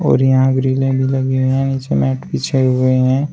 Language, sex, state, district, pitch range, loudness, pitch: Hindi, male, Uttar Pradesh, Shamli, 130-135 Hz, -15 LUFS, 130 Hz